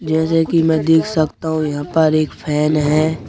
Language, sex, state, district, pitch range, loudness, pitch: Hindi, male, Madhya Pradesh, Bhopal, 155-160 Hz, -16 LUFS, 155 Hz